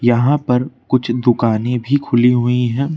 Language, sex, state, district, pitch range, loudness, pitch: Hindi, male, Madhya Pradesh, Bhopal, 120-130 Hz, -16 LUFS, 125 Hz